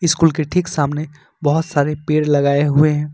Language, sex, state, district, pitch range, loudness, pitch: Hindi, male, Jharkhand, Ranchi, 145-160 Hz, -17 LUFS, 150 Hz